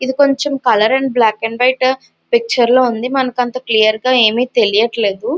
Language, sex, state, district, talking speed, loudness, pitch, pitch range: Telugu, female, Andhra Pradesh, Visakhapatnam, 190 wpm, -14 LUFS, 250 Hz, 225-260 Hz